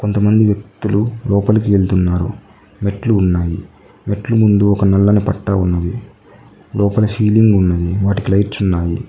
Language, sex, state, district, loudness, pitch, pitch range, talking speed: Telugu, male, Telangana, Mahabubabad, -15 LUFS, 100 Hz, 95-105 Hz, 120 wpm